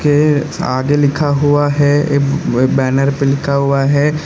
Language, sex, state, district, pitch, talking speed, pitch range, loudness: Hindi, male, Uttar Pradesh, Lalitpur, 145 Hz, 155 wpm, 140-145 Hz, -14 LUFS